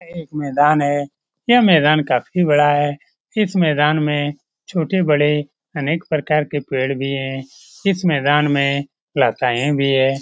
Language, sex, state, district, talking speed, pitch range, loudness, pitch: Hindi, male, Bihar, Lakhisarai, 145 wpm, 140-155 Hz, -17 LUFS, 145 Hz